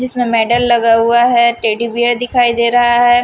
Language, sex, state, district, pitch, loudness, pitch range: Hindi, female, Maharashtra, Washim, 240 Hz, -12 LUFS, 235-245 Hz